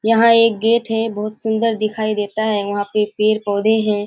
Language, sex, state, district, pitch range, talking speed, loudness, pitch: Hindi, female, Bihar, Kishanganj, 210-225 Hz, 160 wpm, -17 LUFS, 215 Hz